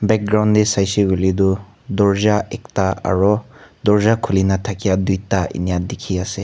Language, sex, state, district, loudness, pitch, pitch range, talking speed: Nagamese, male, Nagaland, Kohima, -18 LUFS, 100 Hz, 95-105 Hz, 140 wpm